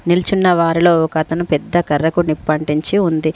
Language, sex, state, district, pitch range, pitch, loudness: Telugu, female, Telangana, Komaram Bheem, 155-175 Hz, 165 Hz, -15 LUFS